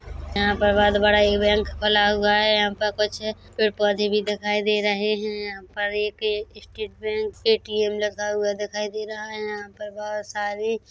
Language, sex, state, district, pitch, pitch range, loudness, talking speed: Hindi, female, Chhattisgarh, Korba, 210 Hz, 205-215 Hz, -23 LUFS, 200 wpm